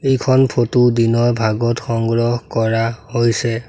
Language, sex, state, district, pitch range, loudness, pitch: Assamese, male, Assam, Sonitpur, 115-120 Hz, -16 LUFS, 115 Hz